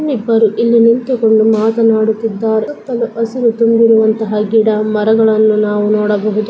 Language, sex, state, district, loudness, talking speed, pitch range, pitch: Kannada, female, Karnataka, Bellary, -12 LUFS, 100 wpm, 215-230 Hz, 220 Hz